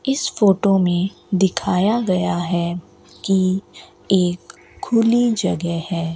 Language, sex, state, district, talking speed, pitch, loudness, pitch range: Hindi, female, Rajasthan, Bikaner, 105 wpm, 190 Hz, -19 LUFS, 175-205 Hz